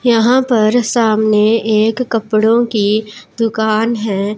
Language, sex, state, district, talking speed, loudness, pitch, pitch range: Hindi, male, Punjab, Pathankot, 110 wpm, -13 LUFS, 220 Hz, 215-230 Hz